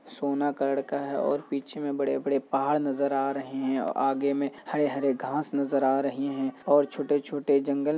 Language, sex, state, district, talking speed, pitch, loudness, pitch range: Hindi, male, Bihar, Kishanganj, 195 wpm, 140 Hz, -28 LUFS, 140-145 Hz